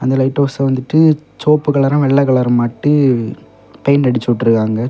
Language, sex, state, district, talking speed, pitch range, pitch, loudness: Tamil, male, Tamil Nadu, Kanyakumari, 135 wpm, 120-145 Hz, 135 Hz, -14 LUFS